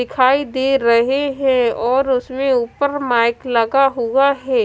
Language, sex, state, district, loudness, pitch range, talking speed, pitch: Hindi, female, Punjab, Kapurthala, -16 LUFS, 245-275 Hz, 140 wpm, 260 Hz